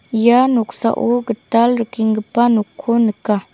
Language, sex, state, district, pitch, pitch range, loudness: Garo, female, Meghalaya, South Garo Hills, 230 Hz, 220-240 Hz, -16 LUFS